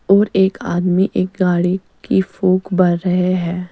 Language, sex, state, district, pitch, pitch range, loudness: Hindi, female, Chandigarh, Chandigarh, 185 Hz, 180-190 Hz, -17 LUFS